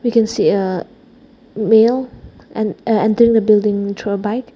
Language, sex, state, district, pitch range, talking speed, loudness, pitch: English, female, Nagaland, Dimapur, 210-240 Hz, 170 wpm, -16 LUFS, 220 Hz